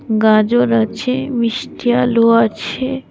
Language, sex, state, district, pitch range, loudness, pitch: Bengali, female, Tripura, West Tripura, 225-255 Hz, -15 LUFS, 235 Hz